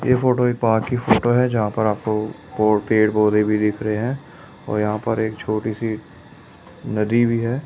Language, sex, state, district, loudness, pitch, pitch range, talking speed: Hindi, male, Delhi, New Delhi, -20 LUFS, 110 Hz, 105-120 Hz, 210 wpm